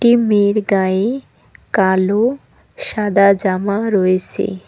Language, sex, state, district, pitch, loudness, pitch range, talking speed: Bengali, female, West Bengal, Cooch Behar, 200 Hz, -16 LUFS, 190-215 Hz, 75 wpm